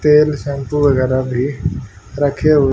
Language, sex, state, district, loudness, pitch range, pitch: Hindi, male, Haryana, Charkhi Dadri, -16 LUFS, 130-150 Hz, 140 Hz